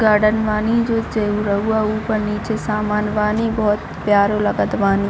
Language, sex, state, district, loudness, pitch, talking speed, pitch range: Hindi, female, Chhattisgarh, Bilaspur, -18 LUFS, 210 Hz, 130 wpm, 210-215 Hz